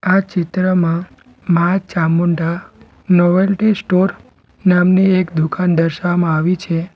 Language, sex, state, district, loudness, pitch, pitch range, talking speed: Gujarati, male, Gujarat, Valsad, -15 LUFS, 180 Hz, 170-185 Hz, 105 wpm